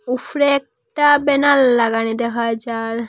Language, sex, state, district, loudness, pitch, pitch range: Bengali, female, Assam, Hailakandi, -16 LUFS, 245 Hz, 230-285 Hz